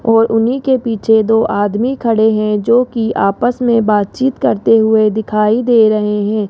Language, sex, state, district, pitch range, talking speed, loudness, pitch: Hindi, female, Rajasthan, Jaipur, 215-235 Hz, 165 wpm, -13 LUFS, 225 Hz